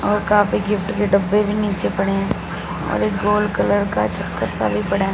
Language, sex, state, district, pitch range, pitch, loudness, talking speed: Hindi, female, Punjab, Fazilka, 195-210 Hz, 205 Hz, -19 LUFS, 220 wpm